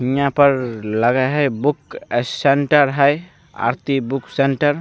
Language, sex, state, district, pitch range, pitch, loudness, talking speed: Maithili, male, Bihar, Begusarai, 130-145 Hz, 140 Hz, -18 LUFS, 135 wpm